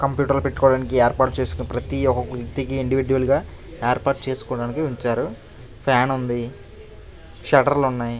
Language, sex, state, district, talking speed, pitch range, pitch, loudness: Telugu, male, Andhra Pradesh, Chittoor, 130 wpm, 120-135 Hz, 130 Hz, -21 LUFS